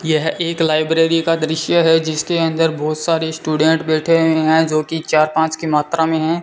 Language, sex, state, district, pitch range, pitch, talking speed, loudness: Hindi, male, Rajasthan, Bikaner, 155-165 Hz, 160 Hz, 195 wpm, -16 LUFS